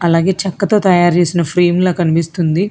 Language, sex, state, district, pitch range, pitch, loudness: Telugu, female, Telangana, Hyderabad, 170-190 Hz, 175 Hz, -13 LUFS